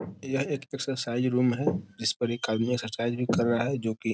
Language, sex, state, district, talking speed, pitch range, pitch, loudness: Hindi, male, Bihar, Gopalganj, 245 wpm, 115-135 Hz, 120 Hz, -28 LUFS